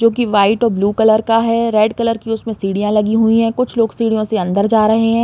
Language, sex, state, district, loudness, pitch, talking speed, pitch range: Hindi, female, Uttar Pradesh, Varanasi, -15 LUFS, 225 Hz, 275 wpm, 215-230 Hz